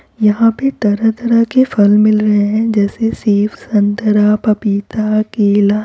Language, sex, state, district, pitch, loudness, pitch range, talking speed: Hindi, female, Uttar Pradesh, Varanasi, 215 Hz, -13 LUFS, 205-225 Hz, 135 wpm